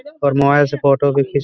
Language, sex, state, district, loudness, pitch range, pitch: Hindi, male, Chhattisgarh, Raigarh, -15 LUFS, 140-145 Hz, 140 Hz